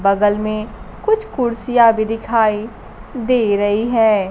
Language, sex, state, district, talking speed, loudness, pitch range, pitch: Hindi, female, Bihar, Kaimur, 125 wpm, -16 LUFS, 210-240 Hz, 225 Hz